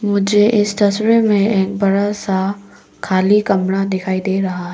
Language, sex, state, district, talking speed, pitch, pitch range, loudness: Hindi, female, Arunachal Pradesh, Papum Pare, 150 wpm, 200 Hz, 190-205 Hz, -16 LUFS